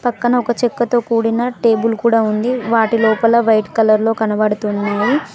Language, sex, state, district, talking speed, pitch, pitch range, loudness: Telugu, female, Telangana, Mahabubabad, 135 wpm, 230 Hz, 220-240 Hz, -15 LUFS